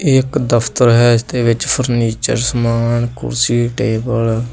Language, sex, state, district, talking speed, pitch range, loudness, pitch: Punjabi, male, Punjab, Kapurthala, 145 wpm, 115-125 Hz, -15 LUFS, 120 Hz